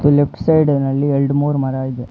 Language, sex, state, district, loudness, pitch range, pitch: Kannada, male, Karnataka, Bangalore, -16 LUFS, 135-145 Hz, 140 Hz